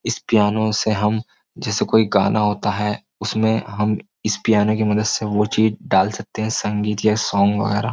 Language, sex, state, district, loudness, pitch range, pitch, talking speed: Hindi, male, Uttar Pradesh, Jyotiba Phule Nagar, -19 LUFS, 105-110 Hz, 105 Hz, 195 wpm